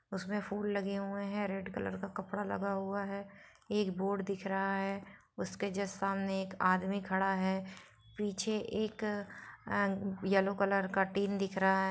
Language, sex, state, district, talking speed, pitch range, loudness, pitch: Hindi, female, Bihar, Saran, 170 wpm, 195-200 Hz, -35 LUFS, 195 Hz